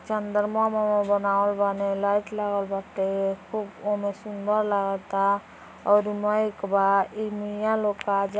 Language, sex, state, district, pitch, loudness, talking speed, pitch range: Hindi, female, Uttar Pradesh, Gorakhpur, 205 Hz, -25 LUFS, 130 wpm, 200-210 Hz